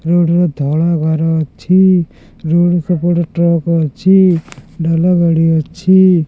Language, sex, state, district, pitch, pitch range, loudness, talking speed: Odia, male, Odisha, Khordha, 170 Hz, 160-175 Hz, -13 LUFS, 115 wpm